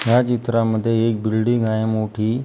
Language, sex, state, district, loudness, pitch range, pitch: Marathi, female, Maharashtra, Gondia, -19 LUFS, 110-120 Hz, 115 Hz